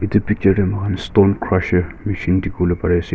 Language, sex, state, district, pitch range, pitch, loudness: Nagamese, male, Nagaland, Kohima, 90-100 Hz, 95 Hz, -18 LUFS